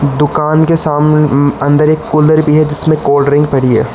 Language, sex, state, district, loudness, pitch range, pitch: Hindi, male, Arunachal Pradesh, Lower Dibang Valley, -10 LUFS, 145-155 Hz, 150 Hz